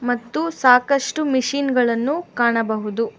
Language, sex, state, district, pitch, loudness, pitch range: Kannada, female, Karnataka, Bangalore, 250 Hz, -19 LUFS, 235-280 Hz